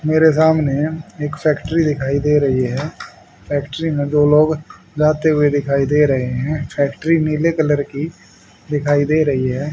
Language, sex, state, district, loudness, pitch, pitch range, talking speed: Hindi, male, Haryana, Rohtak, -17 LUFS, 150 Hz, 140-155 Hz, 160 wpm